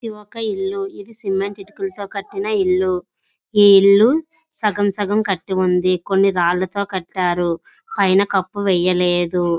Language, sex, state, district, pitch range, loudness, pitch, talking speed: Telugu, female, Andhra Pradesh, Visakhapatnam, 185-225 Hz, -18 LUFS, 200 Hz, 115 wpm